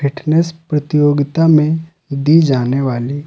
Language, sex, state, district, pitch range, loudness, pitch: Hindi, male, Uttar Pradesh, Lucknow, 140-160 Hz, -14 LUFS, 150 Hz